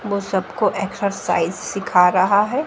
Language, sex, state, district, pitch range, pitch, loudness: Hindi, female, Haryana, Jhajjar, 180-200 Hz, 195 Hz, -19 LUFS